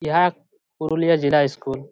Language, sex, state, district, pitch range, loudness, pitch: Bengali, male, West Bengal, Purulia, 145-165 Hz, -20 LUFS, 155 Hz